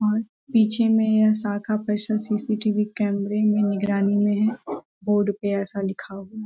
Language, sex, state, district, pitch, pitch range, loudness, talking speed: Hindi, female, Jharkhand, Sahebganj, 210 Hz, 205-215 Hz, -22 LUFS, 160 wpm